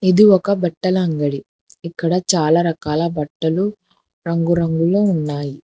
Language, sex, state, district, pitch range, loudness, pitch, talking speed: Telugu, female, Telangana, Hyderabad, 155-185 Hz, -18 LUFS, 170 Hz, 105 wpm